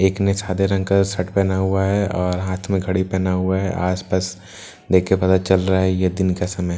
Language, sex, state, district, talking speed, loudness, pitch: Hindi, male, Bihar, Katihar, 255 wpm, -19 LUFS, 95 Hz